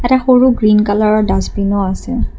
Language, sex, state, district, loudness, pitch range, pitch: Assamese, female, Assam, Kamrup Metropolitan, -13 LUFS, 200-245 Hz, 210 Hz